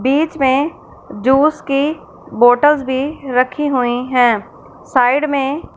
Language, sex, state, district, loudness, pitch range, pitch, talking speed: Hindi, female, Punjab, Fazilka, -15 LUFS, 250-295 Hz, 270 Hz, 115 wpm